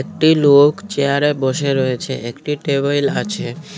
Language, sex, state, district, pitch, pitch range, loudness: Bengali, male, Tripura, Unakoti, 140 Hz, 135-150 Hz, -16 LUFS